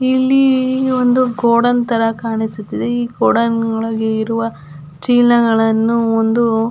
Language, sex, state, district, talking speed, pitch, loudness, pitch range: Kannada, female, Karnataka, Belgaum, 105 wpm, 230 Hz, -15 LUFS, 225-245 Hz